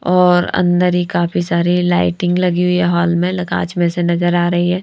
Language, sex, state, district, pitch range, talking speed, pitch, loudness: Hindi, female, Haryana, Rohtak, 175-180 Hz, 225 wpm, 175 Hz, -15 LUFS